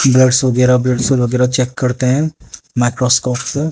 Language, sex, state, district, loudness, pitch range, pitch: Hindi, male, Haryana, Jhajjar, -14 LUFS, 125-130 Hz, 125 Hz